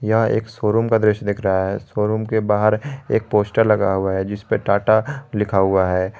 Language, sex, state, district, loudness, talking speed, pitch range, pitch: Hindi, male, Jharkhand, Garhwa, -19 LUFS, 210 wpm, 100-110 Hz, 105 Hz